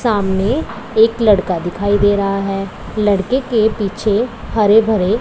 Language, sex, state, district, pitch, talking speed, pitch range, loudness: Hindi, male, Punjab, Pathankot, 210 Hz, 140 wpm, 195-225 Hz, -15 LUFS